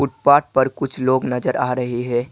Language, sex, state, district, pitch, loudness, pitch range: Hindi, male, Assam, Kamrup Metropolitan, 130 Hz, -19 LUFS, 125-140 Hz